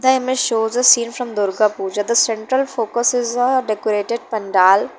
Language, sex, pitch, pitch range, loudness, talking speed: English, female, 235 Hz, 210-250 Hz, -17 LUFS, 180 wpm